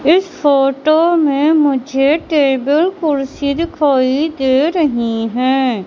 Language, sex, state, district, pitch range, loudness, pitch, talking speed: Hindi, male, Madhya Pradesh, Katni, 265-315 Hz, -14 LUFS, 285 Hz, 100 wpm